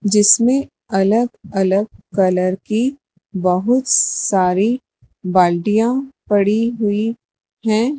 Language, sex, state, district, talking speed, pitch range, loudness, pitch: Hindi, male, Madhya Pradesh, Dhar, 85 wpm, 190-235 Hz, -17 LUFS, 210 Hz